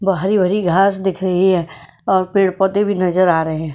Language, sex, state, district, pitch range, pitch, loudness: Hindi, female, Goa, North and South Goa, 180-195 Hz, 190 Hz, -16 LUFS